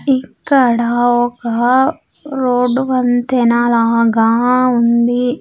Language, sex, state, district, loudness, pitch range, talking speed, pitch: Telugu, female, Andhra Pradesh, Sri Satya Sai, -14 LUFS, 235-255 Hz, 65 wpm, 245 Hz